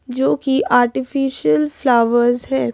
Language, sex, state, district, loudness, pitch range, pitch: Hindi, female, Madhya Pradesh, Bhopal, -16 LUFS, 235-265 Hz, 245 Hz